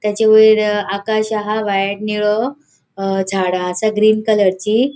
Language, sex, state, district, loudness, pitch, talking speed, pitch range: Konkani, female, Goa, North and South Goa, -15 LUFS, 210 Hz, 145 wpm, 195-215 Hz